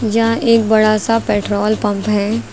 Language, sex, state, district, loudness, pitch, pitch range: Hindi, female, Uttar Pradesh, Lucknow, -15 LUFS, 215 Hz, 210-225 Hz